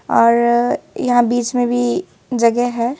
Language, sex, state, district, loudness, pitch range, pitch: Hindi, female, Madhya Pradesh, Bhopal, -16 LUFS, 235-245 Hz, 240 Hz